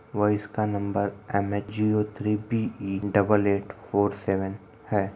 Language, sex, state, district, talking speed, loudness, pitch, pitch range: Hindi, male, Maharashtra, Dhule, 140 wpm, -26 LUFS, 100 Hz, 100-105 Hz